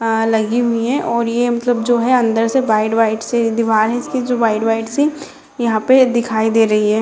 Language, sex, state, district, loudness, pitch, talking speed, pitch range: Hindi, female, Bihar, Jamui, -15 LUFS, 230 Hz, 215 wpm, 225-245 Hz